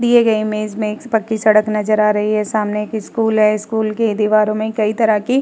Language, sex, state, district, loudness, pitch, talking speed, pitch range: Hindi, female, Uttar Pradesh, Muzaffarnagar, -16 LUFS, 215 Hz, 255 wpm, 215-220 Hz